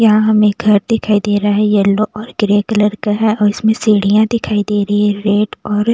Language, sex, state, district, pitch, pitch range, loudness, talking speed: Hindi, female, Bihar, West Champaran, 210 Hz, 205-215 Hz, -13 LUFS, 230 wpm